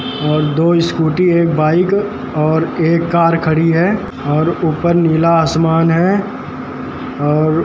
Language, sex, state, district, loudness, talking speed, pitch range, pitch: Hindi, male, Uttarakhand, Tehri Garhwal, -14 LUFS, 135 wpm, 155-170 Hz, 165 Hz